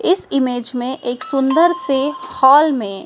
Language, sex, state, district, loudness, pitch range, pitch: Hindi, female, Madhya Pradesh, Dhar, -16 LUFS, 255-330 Hz, 270 Hz